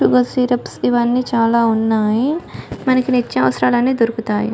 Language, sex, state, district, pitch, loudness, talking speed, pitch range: Telugu, female, Telangana, Karimnagar, 235 Hz, -16 LUFS, 120 wpm, 220-250 Hz